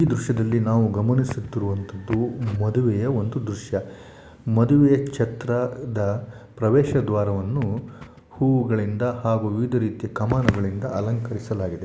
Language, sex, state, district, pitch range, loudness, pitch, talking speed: Kannada, male, Karnataka, Shimoga, 105-125 Hz, -23 LUFS, 115 Hz, 85 wpm